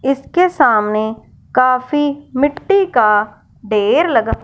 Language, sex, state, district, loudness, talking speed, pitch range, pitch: Hindi, male, Punjab, Fazilka, -15 LUFS, 95 wpm, 215-290 Hz, 255 Hz